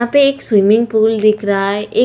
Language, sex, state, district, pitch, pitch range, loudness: Hindi, female, Chhattisgarh, Sukma, 215 Hz, 205-240 Hz, -13 LUFS